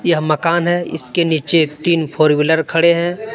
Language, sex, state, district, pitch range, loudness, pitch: Hindi, male, Jharkhand, Deoghar, 155-170 Hz, -15 LUFS, 165 Hz